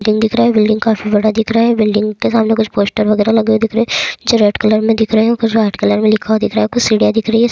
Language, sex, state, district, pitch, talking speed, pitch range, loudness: Hindi, female, Andhra Pradesh, Chittoor, 220 Hz, 350 wpm, 215-225 Hz, -13 LUFS